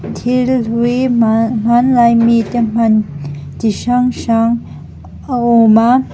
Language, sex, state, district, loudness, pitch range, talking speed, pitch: Mizo, female, Mizoram, Aizawl, -13 LUFS, 225-245 Hz, 115 wpm, 235 Hz